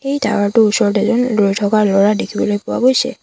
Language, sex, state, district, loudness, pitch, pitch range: Assamese, female, Assam, Sonitpur, -15 LUFS, 215 Hz, 205-245 Hz